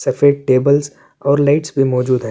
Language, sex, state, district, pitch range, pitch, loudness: Urdu, male, Uttar Pradesh, Budaun, 130-145 Hz, 140 Hz, -15 LUFS